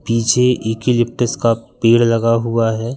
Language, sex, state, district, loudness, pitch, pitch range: Hindi, male, Madhya Pradesh, Katni, -16 LUFS, 115 Hz, 115-120 Hz